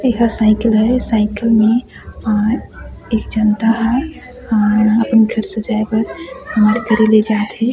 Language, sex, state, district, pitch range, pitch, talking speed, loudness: Chhattisgarhi, female, Chhattisgarh, Sarguja, 215-230 Hz, 220 Hz, 130 wpm, -15 LUFS